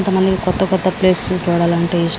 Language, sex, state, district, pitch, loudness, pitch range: Telugu, female, Andhra Pradesh, Srikakulam, 185 Hz, -16 LUFS, 175-190 Hz